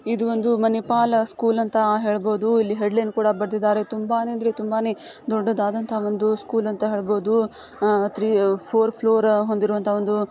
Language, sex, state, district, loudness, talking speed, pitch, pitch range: Kannada, female, Karnataka, Dakshina Kannada, -21 LUFS, 150 wpm, 215 Hz, 210-225 Hz